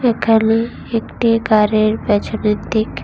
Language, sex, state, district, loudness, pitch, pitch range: Bengali, female, Tripura, West Tripura, -16 LUFS, 220 Hz, 215-225 Hz